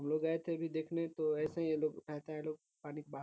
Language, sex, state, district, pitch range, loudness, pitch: Hindi, male, Bihar, Gopalganj, 150-160 Hz, -39 LUFS, 155 Hz